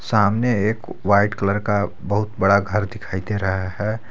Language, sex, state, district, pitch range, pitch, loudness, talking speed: Hindi, male, Jharkhand, Garhwa, 100-105 Hz, 105 Hz, -21 LUFS, 175 wpm